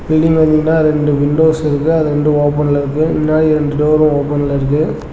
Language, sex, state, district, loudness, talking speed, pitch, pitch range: Tamil, male, Tamil Nadu, Namakkal, -13 LUFS, 165 wpm, 150 Hz, 145-155 Hz